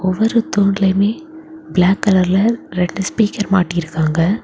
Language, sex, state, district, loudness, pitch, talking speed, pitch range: Tamil, female, Tamil Nadu, Kanyakumari, -16 LUFS, 195 Hz, 110 wpm, 180-220 Hz